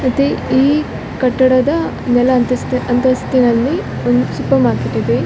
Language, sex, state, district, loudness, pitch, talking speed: Kannada, female, Karnataka, Dakshina Kannada, -14 LUFS, 250 Hz, 115 wpm